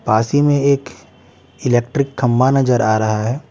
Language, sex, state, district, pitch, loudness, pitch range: Hindi, male, Bihar, Patna, 125 Hz, -16 LUFS, 115-140 Hz